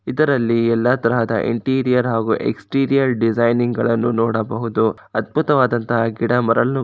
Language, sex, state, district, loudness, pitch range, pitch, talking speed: Kannada, male, Karnataka, Shimoga, -18 LUFS, 115-125 Hz, 115 Hz, 95 wpm